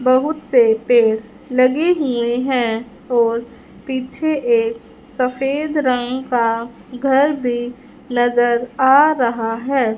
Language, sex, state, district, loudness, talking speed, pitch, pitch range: Hindi, female, Punjab, Fazilka, -17 LUFS, 110 wpm, 250 Hz, 235-265 Hz